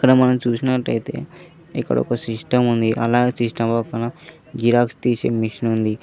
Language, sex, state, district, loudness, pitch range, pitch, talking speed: Telugu, male, Telangana, Mahabubabad, -20 LUFS, 115-125 Hz, 120 Hz, 120 wpm